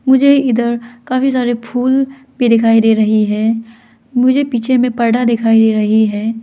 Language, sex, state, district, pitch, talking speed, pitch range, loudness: Hindi, female, Arunachal Pradesh, Lower Dibang Valley, 240 Hz, 170 wpm, 225-255 Hz, -13 LUFS